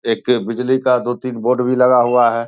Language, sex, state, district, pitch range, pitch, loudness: Hindi, male, Bihar, Saharsa, 120-125 Hz, 125 Hz, -16 LUFS